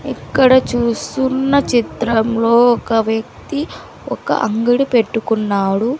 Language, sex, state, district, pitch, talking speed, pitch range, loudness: Telugu, female, Andhra Pradesh, Sri Satya Sai, 235 Hz, 80 wpm, 225-260 Hz, -16 LUFS